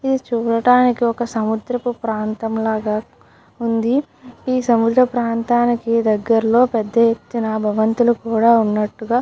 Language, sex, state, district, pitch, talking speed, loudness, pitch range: Telugu, female, Andhra Pradesh, Krishna, 230 Hz, 105 wpm, -18 LUFS, 220-240 Hz